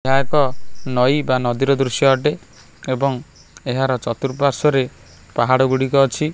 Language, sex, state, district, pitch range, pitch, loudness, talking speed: Odia, male, Odisha, Khordha, 130-140 Hz, 135 Hz, -18 LUFS, 140 wpm